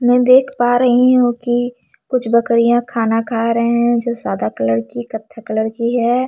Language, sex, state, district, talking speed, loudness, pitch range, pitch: Hindi, female, Chhattisgarh, Jashpur, 190 wpm, -15 LUFS, 230-245 Hz, 240 Hz